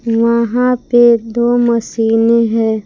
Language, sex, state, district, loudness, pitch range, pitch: Hindi, female, Jharkhand, Palamu, -12 LUFS, 225-240 Hz, 235 Hz